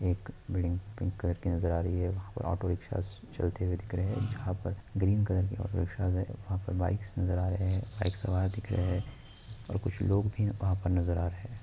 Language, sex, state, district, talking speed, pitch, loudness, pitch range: Hindi, male, Bihar, Saharsa, 260 wpm, 95 Hz, -33 LUFS, 90-105 Hz